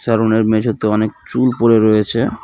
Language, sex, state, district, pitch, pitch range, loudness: Bengali, male, West Bengal, Cooch Behar, 110 Hz, 110-115 Hz, -15 LUFS